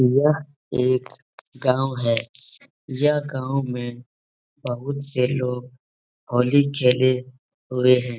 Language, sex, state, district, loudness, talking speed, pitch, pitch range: Hindi, male, Uttar Pradesh, Etah, -22 LUFS, 100 wpm, 125 Hz, 125-135 Hz